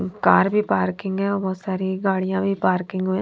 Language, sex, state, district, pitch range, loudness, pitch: Hindi, female, Haryana, Charkhi Dadri, 185-195 Hz, -21 LUFS, 190 Hz